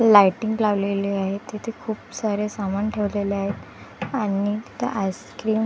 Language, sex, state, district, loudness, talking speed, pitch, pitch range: Marathi, female, Maharashtra, Gondia, -24 LUFS, 125 wpm, 205 Hz, 200-220 Hz